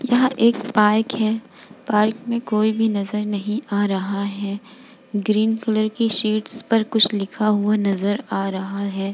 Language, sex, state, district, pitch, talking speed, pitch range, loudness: Hindi, female, Bihar, Vaishali, 215 Hz, 165 wpm, 205-225 Hz, -19 LUFS